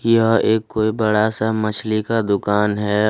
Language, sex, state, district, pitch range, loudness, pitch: Hindi, male, Jharkhand, Deoghar, 105-110 Hz, -18 LUFS, 110 Hz